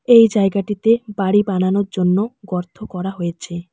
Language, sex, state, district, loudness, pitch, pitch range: Bengali, male, West Bengal, Alipurduar, -18 LUFS, 200 Hz, 180-210 Hz